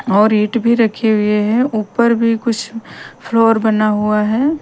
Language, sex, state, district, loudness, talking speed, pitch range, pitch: Hindi, female, Bihar, Patna, -14 LUFS, 180 wpm, 215-230 Hz, 225 Hz